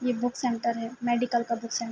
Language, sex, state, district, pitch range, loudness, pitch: Urdu, female, Andhra Pradesh, Anantapur, 235-245 Hz, -28 LUFS, 240 Hz